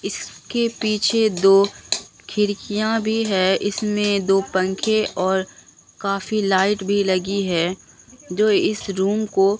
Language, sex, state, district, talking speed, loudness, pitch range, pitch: Hindi, male, Bihar, Katihar, 120 wpm, -20 LUFS, 190-215 Hz, 200 Hz